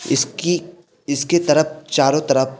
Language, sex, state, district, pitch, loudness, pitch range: Hindi, male, Madhya Pradesh, Bhopal, 155 Hz, -18 LUFS, 140-175 Hz